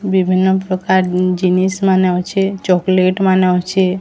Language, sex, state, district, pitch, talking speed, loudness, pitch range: Odia, female, Odisha, Sambalpur, 185 Hz, 120 wpm, -14 LUFS, 185-190 Hz